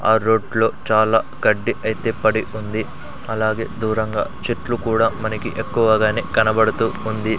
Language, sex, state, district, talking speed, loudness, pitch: Telugu, male, Andhra Pradesh, Sri Satya Sai, 120 wpm, -19 LUFS, 110 Hz